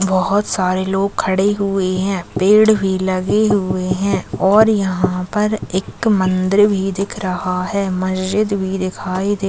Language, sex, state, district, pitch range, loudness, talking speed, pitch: Hindi, female, Chhattisgarh, Raigarh, 185-200 Hz, -17 LUFS, 150 wpm, 190 Hz